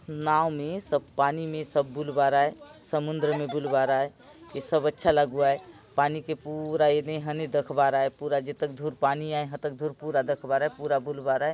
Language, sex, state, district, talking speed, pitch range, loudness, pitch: Chhattisgarhi, male, Chhattisgarh, Bastar, 215 wpm, 140-155 Hz, -27 LUFS, 150 Hz